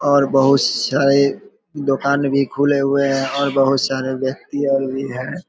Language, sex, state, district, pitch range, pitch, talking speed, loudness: Hindi, male, Bihar, Vaishali, 135-140 Hz, 140 Hz, 165 wpm, -17 LUFS